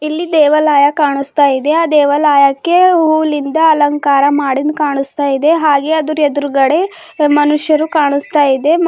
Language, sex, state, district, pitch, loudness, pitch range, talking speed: Kannada, female, Karnataka, Bidar, 295 Hz, -12 LUFS, 285-315 Hz, 115 wpm